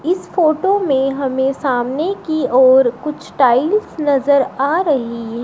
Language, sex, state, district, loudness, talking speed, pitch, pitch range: Hindi, female, Uttar Pradesh, Shamli, -16 LUFS, 145 wpm, 275 Hz, 260-315 Hz